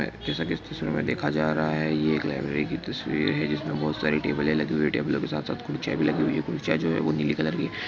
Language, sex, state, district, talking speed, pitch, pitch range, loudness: Hindi, male, Bihar, East Champaran, 165 wpm, 75 Hz, 75-80 Hz, -27 LUFS